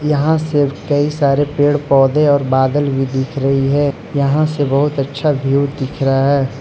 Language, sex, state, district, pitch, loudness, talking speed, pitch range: Hindi, male, Arunachal Pradesh, Lower Dibang Valley, 140 Hz, -15 LUFS, 180 wpm, 135-145 Hz